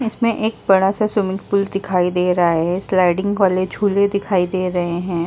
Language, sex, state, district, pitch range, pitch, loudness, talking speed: Hindi, female, Uttar Pradesh, Muzaffarnagar, 180-200 Hz, 190 Hz, -18 LUFS, 195 wpm